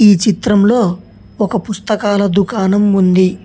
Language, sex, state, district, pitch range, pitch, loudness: Telugu, male, Telangana, Hyderabad, 195-215 Hz, 205 Hz, -13 LUFS